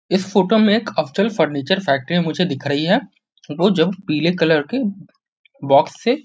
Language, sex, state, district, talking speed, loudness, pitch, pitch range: Hindi, male, Bihar, Muzaffarpur, 190 wpm, -18 LUFS, 175 Hz, 150-200 Hz